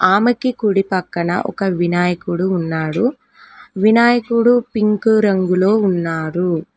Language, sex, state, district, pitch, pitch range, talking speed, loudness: Telugu, female, Telangana, Mahabubabad, 195 Hz, 175-235 Hz, 90 wpm, -16 LUFS